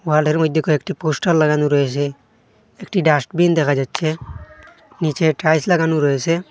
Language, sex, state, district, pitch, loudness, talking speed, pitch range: Bengali, male, Assam, Hailakandi, 155 Hz, -18 LUFS, 140 wpm, 145-165 Hz